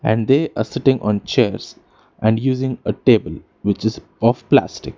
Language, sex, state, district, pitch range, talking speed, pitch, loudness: English, male, Karnataka, Bangalore, 105-130 Hz, 170 wpm, 115 Hz, -18 LUFS